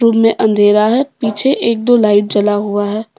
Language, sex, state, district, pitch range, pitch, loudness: Hindi, female, Jharkhand, Deoghar, 205-230 Hz, 220 Hz, -12 LUFS